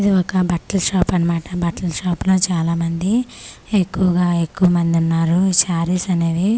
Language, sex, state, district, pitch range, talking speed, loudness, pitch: Telugu, female, Andhra Pradesh, Manyam, 170-185 Hz, 155 wpm, -18 LUFS, 180 Hz